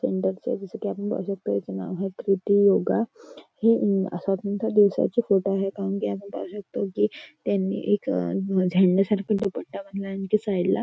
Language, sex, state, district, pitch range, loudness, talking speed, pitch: Marathi, female, Maharashtra, Nagpur, 185-205 Hz, -25 LUFS, 140 wpm, 195 Hz